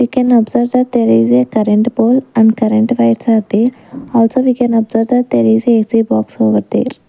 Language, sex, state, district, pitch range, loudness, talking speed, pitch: English, female, Punjab, Kapurthala, 210-245 Hz, -12 LUFS, 220 wpm, 225 Hz